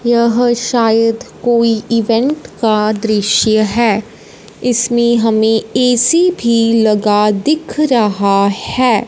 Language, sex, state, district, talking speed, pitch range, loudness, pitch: Hindi, female, Punjab, Fazilka, 100 wpm, 215-240 Hz, -13 LUFS, 230 Hz